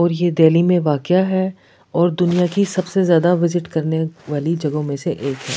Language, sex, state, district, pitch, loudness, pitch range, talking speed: Hindi, female, Delhi, New Delhi, 170 Hz, -18 LUFS, 160-180 Hz, 205 wpm